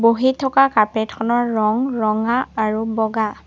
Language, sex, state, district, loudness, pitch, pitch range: Assamese, female, Assam, Sonitpur, -18 LUFS, 225 Hz, 220-250 Hz